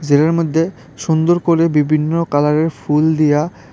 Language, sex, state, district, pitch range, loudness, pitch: Bengali, male, Tripura, West Tripura, 150-165 Hz, -15 LUFS, 155 Hz